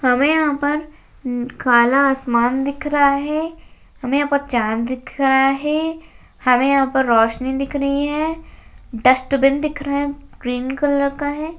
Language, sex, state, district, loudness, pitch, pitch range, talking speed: Hindi, female, Rajasthan, Nagaur, -18 LUFS, 275 Hz, 255-290 Hz, 155 wpm